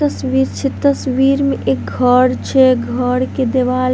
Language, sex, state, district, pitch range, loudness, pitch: Maithili, female, Bihar, Vaishali, 255-270 Hz, -15 LUFS, 260 Hz